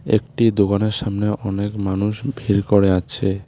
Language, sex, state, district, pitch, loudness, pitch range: Bengali, male, West Bengal, Alipurduar, 100 Hz, -19 LUFS, 100-110 Hz